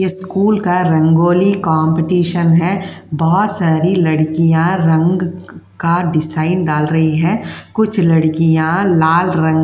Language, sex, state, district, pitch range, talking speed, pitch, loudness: Hindi, female, Uttar Pradesh, Jyotiba Phule Nagar, 160-180 Hz, 120 wpm, 165 Hz, -14 LUFS